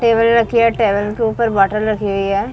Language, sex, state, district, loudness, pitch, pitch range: Hindi, female, Chhattisgarh, Balrampur, -15 LUFS, 225 Hz, 205-230 Hz